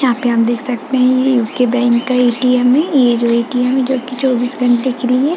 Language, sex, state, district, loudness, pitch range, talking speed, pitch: Hindi, female, Chhattisgarh, Bilaspur, -14 LUFS, 240-260 Hz, 280 wpm, 250 Hz